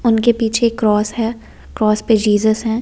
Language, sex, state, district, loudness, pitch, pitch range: Hindi, female, Delhi, New Delhi, -16 LUFS, 225 Hz, 215-230 Hz